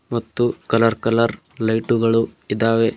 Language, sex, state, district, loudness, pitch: Kannada, male, Karnataka, Bidar, -20 LUFS, 115 Hz